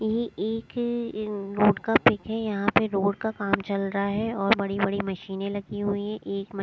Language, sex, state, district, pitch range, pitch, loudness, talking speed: Hindi, female, Maharashtra, Mumbai Suburban, 200-220 Hz, 205 Hz, -26 LUFS, 180 wpm